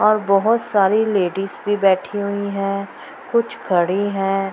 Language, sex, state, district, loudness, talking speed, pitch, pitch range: Hindi, female, Bihar, Purnia, -19 LUFS, 145 wpm, 200 Hz, 195-210 Hz